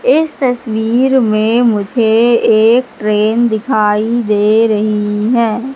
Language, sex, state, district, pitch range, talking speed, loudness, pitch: Hindi, female, Madhya Pradesh, Katni, 215-240 Hz, 105 wpm, -12 LUFS, 225 Hz